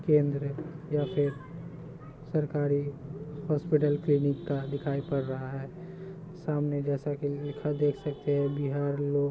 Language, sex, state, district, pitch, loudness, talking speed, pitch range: Hindi, male, Bihar, Samastipur, 145 Hz, -30 LUFS, 140 wpm, 140-150 Hz